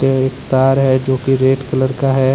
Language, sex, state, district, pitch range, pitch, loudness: Hindi, male, Jharkhand, Deoghar, 130-135 Hz, 130 Hz, -15 LUFS